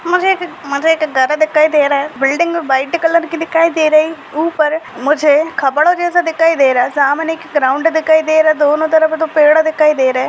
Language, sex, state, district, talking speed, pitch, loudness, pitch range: Hindi, female, Maharashtra, Dhule, 215 wpm, 315 Hz, -13 LUFS, 290-325 Hz